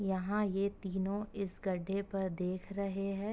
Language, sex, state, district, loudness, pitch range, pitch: Hindi, female, Uttar Pradesh, Gorakhpur, -37 LUFS, 190-200 Hz, 195 Hz